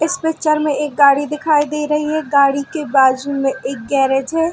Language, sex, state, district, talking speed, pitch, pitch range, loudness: Hindi, female, Chhattisgarh, Bilaspur, 210 wpm, 290 Hz, 275-305 Hz, -16 LUFS